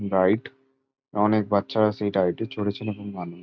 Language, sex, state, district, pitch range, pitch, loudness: Bengali, male, West Bengal, Jalpaiguri, 100-110 Hz, 105 Hz, -25 LUFS